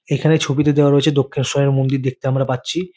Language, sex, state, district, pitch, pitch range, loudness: Bengali, male, West Bengal, Kolkata, 140 Hz, 135-150 Hz, -17 LUFS